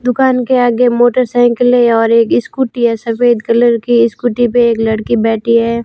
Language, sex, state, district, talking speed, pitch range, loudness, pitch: Hindi, female, Rajasthan, Barmer, 175 wpm, 230-245 Hz, -11 LUFS, 240 Hz